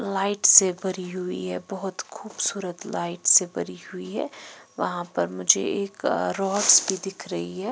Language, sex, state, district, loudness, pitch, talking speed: Hindi, female, Punjab, Pathankot, -23 LUFS, 185 Hz, 165 wpm